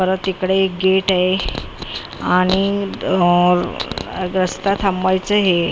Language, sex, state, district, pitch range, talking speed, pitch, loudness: Marathi, female, Maharashtra, Mumbai Suburban, 180-190 Hz, 115 wpm, 185 Hz, -18 LUFS